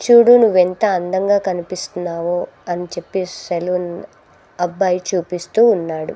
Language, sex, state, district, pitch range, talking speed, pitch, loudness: Telugu, female, Andhra Pradesh, Sri Satya Sai, 175-190 Hz, 105 wpm, 180 Hz, -17 LUFS